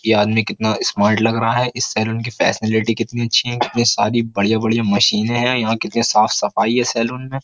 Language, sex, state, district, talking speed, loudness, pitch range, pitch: Hindi, male, Uttar Pradesh, Jyotiba Phule Nagar, 210 wpm, -17 LUFS, 110-120 Hz, 115 Hz